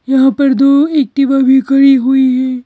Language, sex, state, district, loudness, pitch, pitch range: Hindi, female, Madhya Pradesh, Bhopal, -10 LUFS, 270 Hz, 265-275 Hz